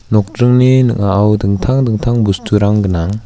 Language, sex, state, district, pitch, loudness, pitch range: Garo, male, Meghalaya, West Garo Hills, 105 Hz, -12 LUFS, 100-120 Hz